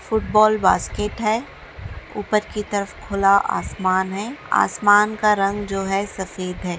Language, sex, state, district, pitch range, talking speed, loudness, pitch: Hindi, female, Uttar Pradesh, Gorakhpur, 195-210 Hz, 170 wpm, -20 LUFS, 205 Hz